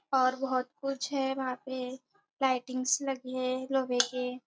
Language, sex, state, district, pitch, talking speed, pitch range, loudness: Hindi, female, Maharashtra, Nagpur, 260 Hz, 150 wpm, 255-270 Hz, -31 LUFS